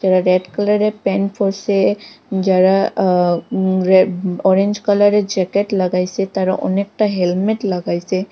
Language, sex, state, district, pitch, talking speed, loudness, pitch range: Bengali, female, Assam, Hailakandi, 190 Hz, 130 wpm, -16 LUFS, 185-205 Hz